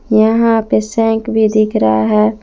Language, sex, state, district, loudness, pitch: Hindi, female, Jharkhand, Palamu, -13 LUFS, 215 Hz